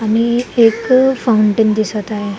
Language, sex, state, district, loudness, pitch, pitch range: Marathi, female, Maharashtra, Sindhudurg, -14 LUFS, 225 Hz, 215-240 Hz